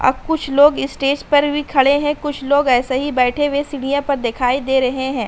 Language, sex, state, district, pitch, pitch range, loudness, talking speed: Hindi, female, Uttar Pradesh, Hamirpur, 280 Hz, 260-290 Hz, -17 LUFS, 225 wpm